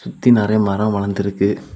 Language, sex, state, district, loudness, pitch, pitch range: Tamil, male, Tamil Nadu, Kanyakumari, -17 LUFS, 100 Hz, 100-110 Hz